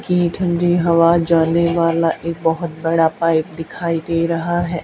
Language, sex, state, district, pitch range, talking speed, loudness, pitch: Hindi, female, Haryana, Charkhi Dadri, 165-170 Hz, 160 wpm, -17 LUFS, 170 Hz